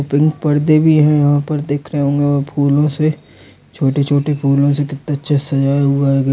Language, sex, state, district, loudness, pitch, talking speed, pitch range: Angika, male, Bihar, Samastipur, -15 LUFS, 145 Hz, 200 wpm, 140-150 Hz